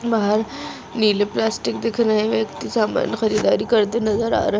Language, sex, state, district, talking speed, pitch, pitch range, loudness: Hindi, female, Goa, North and South Goa, 180 wpm, 220 Hz, 215-230 Hz, -20 LUFS